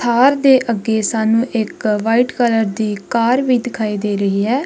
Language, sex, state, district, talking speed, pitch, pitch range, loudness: Punjabi, female, Punjab, Kapurthala, 180 wpm, 225 Hz, 215-245 Hz, -16 LUFS